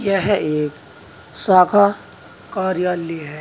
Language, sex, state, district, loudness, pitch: Hindi, male, Uttar Pradesh, Saharanpur, -18 LUFS, 160 Hz